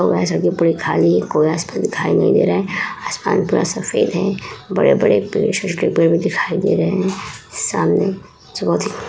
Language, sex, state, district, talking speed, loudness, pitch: Hindi, female, Uttar Pradesh, Muzaffarnagar, 160 wpm, -17 LUFS, 155 Hz